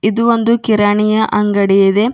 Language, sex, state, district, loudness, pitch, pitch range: Kannada, female, Karnataka, Bidar, -13 LUFS, 210 Hz, 205-230 Hz